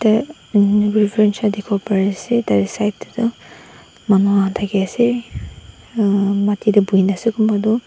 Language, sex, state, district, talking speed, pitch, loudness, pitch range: Nagamese, female, Nagaland, Dimapur, 85 wpm, 205 Hz, -17 LUFS, 200-215 Hz